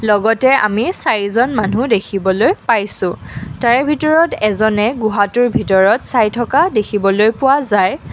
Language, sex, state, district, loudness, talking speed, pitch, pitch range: Assamese, female, Assam, Kamrup Metropolitan, -14 LUFS, 120 wpm, 220 Hz, 210-255 Hz